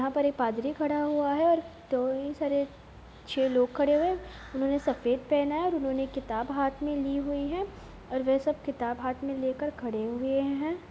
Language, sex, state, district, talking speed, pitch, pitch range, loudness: Hindi, female, Bihar, Gopalganj, 205 wpm, 280 Hz, 260-295 Hz, -29 LUFS